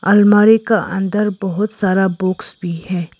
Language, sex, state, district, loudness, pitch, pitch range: Hindi, female, Arunachal Pradesh, Lower Dibang Valley, -15 LUFS, 195 Hz, 185-210 Hz